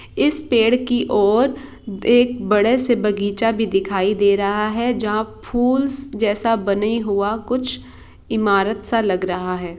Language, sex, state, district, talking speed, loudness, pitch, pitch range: Hindi, female, Bihar, Saran, 165 wpm, -19 LUFS, 220 Hz, 205-245 Hz